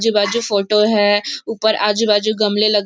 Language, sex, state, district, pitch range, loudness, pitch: Hindi, female, Maharashtra, Nagpur, 205-220 Hz, -16 LUFS, 210 Hz